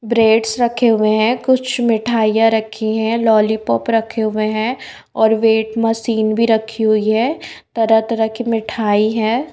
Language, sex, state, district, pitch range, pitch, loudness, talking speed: Hindi, female, Bihar, Katihar, 220-230 Hz, 225 Hz, -16 LUFS, 150 wpm